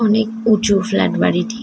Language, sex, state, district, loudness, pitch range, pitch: Bengali, female, West Bengal, North 24 Parganas, -16 LUFS, 205-225 Hz, 220 Hz